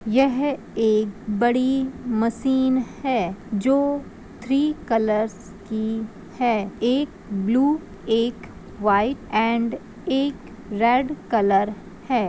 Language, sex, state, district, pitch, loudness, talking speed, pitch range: Magahi, female, Bihar, Gaya, 230 Hz, -22 LUFS, 95 wpm, 215-265 Hz